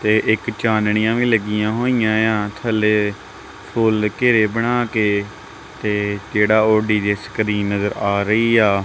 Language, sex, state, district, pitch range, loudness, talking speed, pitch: Punjabi, male, Punjab, Kapurthala, 105-110 Hz, -18 LUFS, 150 wpm, 110 Hz